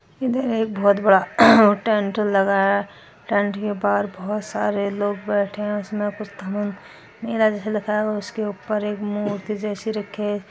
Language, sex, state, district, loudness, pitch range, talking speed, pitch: Hindi, female, Uttar Pradesh, Etah, -21 LUFS, 200-215 Hz, 125 wpm, 205 Hz